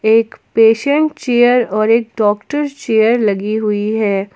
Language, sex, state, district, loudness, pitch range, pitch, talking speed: Hindi, female, Jharkhand, Palamu, -14 LUFS, 210-245 Hz, 225 Hz, 135 wpm